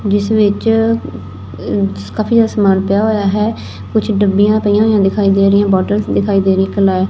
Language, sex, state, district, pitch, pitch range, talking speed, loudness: Punjabi, female, Punjab, Fazilka, 200 Hz, 190-210 Hz, 175 wpm, -13 LUFS